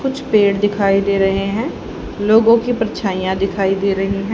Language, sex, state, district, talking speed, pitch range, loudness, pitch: Hindi, female, Haryana, Charkhi Dadri, 180 wpm, 195-220 Hz, -16 LUFS, 200 Hz